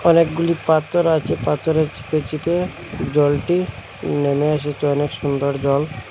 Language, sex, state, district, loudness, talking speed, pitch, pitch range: Bengali, male, Assam, Hailakandi, -20 LUFS, 120 wpm, 150 Hz, 145-160 Hz